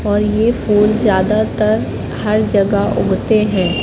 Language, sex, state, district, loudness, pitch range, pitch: Hindi, female, Madhya Pradesh, Katni, -15 LUFS, 205-215 Hz, 210 Hz